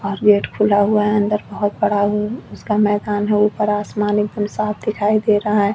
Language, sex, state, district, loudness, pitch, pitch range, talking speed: Hindi, female, Chhattisgarh, Bastar, -18 LUFS, 210 Hz, 205-210 Hz, 210 wpm